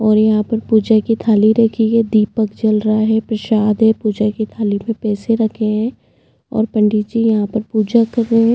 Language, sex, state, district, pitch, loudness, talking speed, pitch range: Hindi, female, Uttarakhand, Tehri Garhwal, 220 Hz, -15 LUFS, 210 wpm, 215-225 Hz